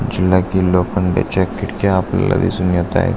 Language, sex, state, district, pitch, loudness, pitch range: Marathi, male, Maharashtra, Aurangabad, 90 Hz, -16 LUFS, 90-95 Hz